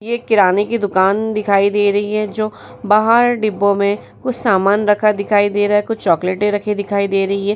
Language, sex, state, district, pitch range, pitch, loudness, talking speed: Hindi, female, Bihar, Vaishali, 200-215 Hz, 205 Hz, -15 LUFS, 205 wpm